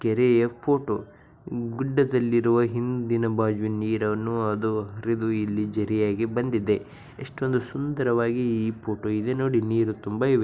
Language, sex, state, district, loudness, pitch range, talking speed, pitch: Kannada, male, Karnataka, Bijapur, -25 LUFS, 110-125 Hz, 120 wpm, 115 Hz